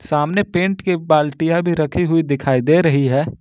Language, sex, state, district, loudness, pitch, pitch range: Hindi, male, Jharkhand, Ranchi, -17 LUFS, 160 Hz, 145-175 Hz